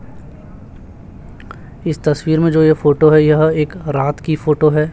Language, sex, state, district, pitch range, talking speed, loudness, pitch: Hindi, male, Chhattisgarh, Raipur, 150-160 Hz, 160 wpm, -14 LUFS, 155 Hz